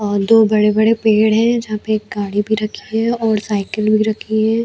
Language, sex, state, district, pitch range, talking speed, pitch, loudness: Hindi, female, Chhattisgarh, Balrampur, 210-220 Hz, 230 wpm, 215 Hz, -16 LUFS